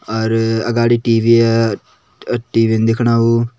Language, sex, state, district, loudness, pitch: Kumaoni, male, Uttarakhand, Tehri Garhwal, -14 LUFS, 115 Hz